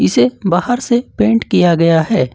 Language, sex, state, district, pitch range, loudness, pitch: Hindi, male, Jharkhand, Ranchi, 165-240 Hz, -13 LUFS, 190 Hz